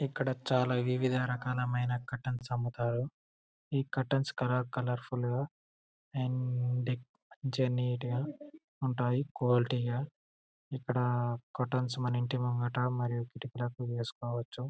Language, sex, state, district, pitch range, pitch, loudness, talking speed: Telugu, male, Telangana, Karimnagar, 120-130 Hz, 125 Hz, -34 LUFS, 115 wpm